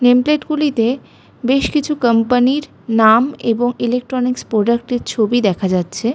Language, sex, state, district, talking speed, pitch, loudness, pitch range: Bengali, female, West Bengal, Malda, 145 wpm, 245 Hz, -16 LUFS, 230-260 Hz